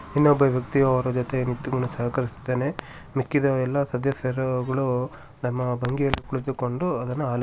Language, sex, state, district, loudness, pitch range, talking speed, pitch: Kannada, male, Karnataka, Shimoga, -25 LUFS, 125-140 Hz, 120 wpm, 130 Hz